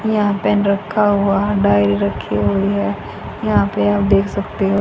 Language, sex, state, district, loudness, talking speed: Hindi, female, Haryana, Jhajjar, -17 LUFS, 175 wpm